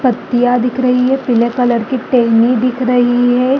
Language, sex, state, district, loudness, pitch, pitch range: Hindi, female, Chhattisgarh, Balrampur, -13 LUFS, 245 Hz, 245-255 Hz